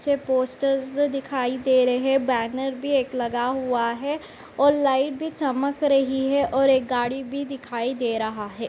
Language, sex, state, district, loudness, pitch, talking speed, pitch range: Hindi, female, Uttar Pradesh, Etah, -23 LUFS, 265 Hz, 170 wpm, 250-275 Hz